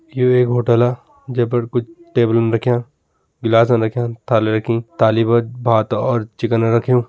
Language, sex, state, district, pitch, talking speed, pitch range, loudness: Kumaoni, male, Uttarakhand, Tehri Garhwal, 120 Hz, 150 wpm, 115-125 Hz, -17 LUFS